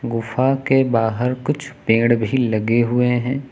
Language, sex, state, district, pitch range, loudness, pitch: Hindi, male, Uttar Pradesh, Lucknow, 115-135 Hz, -18 LUFS, 125 Hz